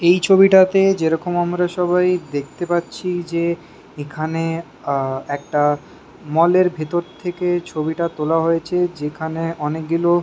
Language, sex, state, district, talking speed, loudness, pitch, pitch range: Bengali, male, West Bengal, Kolkata, 110 wpm, -19 LUFS, 170 Hz, 155-175 Hz